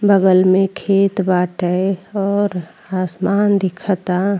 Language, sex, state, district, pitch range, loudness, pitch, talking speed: Bhojpuri, female, Uttar Pradesh, Ghazipur, 185-200 Hz, -17 LUFS, 195 Hz, 95 wpm